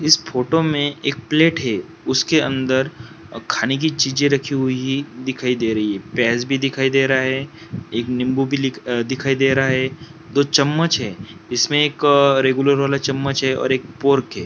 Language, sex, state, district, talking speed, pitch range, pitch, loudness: Hindi, male, Jharkhand, Sahebganj, 185 wpm, 130-145 Hz, 135 Hz, -18 LUFS